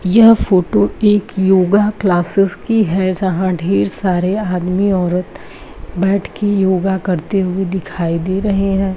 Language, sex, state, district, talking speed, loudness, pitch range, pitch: Hindi, female, Bihar, Araria, 135 wpm, -15 LUFS, 180-195 Hz, 190 Hz